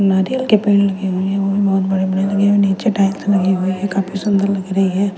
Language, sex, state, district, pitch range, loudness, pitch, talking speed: Hindi, female, Punjab, Kapurthala, 190-200 Hz, -16 LUFS, 195 Hz, 290 wpm